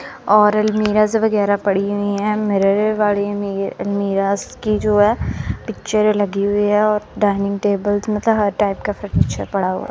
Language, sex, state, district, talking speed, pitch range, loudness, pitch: Hindi, female, Punjab, Kapurthala, 175 wpm, 200-210 Hz, -18 LUFS, 205 Hz